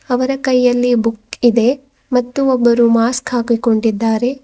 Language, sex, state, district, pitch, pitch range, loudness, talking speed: Kannada, female, Karnataka, Bidar, 245 Hz, 230-255 Hz, -15 LUFS, 110 wpm